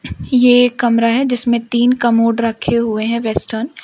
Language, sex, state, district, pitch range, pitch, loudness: Hindi, female, Madhya Pradesh, Umaria, 230-245 Hz, 235 Hz, -14 LUFS